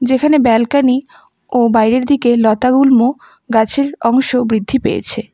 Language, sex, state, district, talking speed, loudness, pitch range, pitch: Bengali, female, West Bengal, Alipurduar, 110 wpm, -13 LUFS, 230-270 Hz, 250 Hz